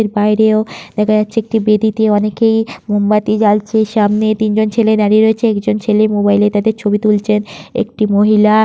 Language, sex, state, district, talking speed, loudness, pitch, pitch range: Bengali, female, West Bengal, Purulia, 160 wpm, -13 LUFS, 215 Hz, 210-220 Hz